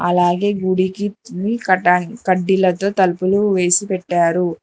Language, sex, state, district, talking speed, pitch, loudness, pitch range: Telugu, female, Telangana, Hyderabad, 80 wpm, 185 Hz, -17 LUFS, 180-200 Hz